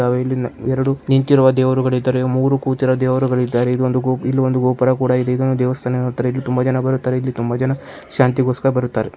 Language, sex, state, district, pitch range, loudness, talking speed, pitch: Kannada, male, Karnataka, Chamarajanagar, 125-130 Hz, -17 LUFS, 175 wpm, 130 Hz